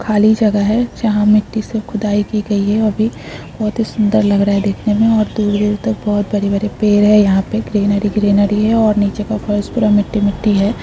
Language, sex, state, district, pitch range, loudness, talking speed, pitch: Hindi, female, Chhattisgarh, Bilaspur, 205-215 Hz, -15 LUFS, 220 wpm, 210 Hz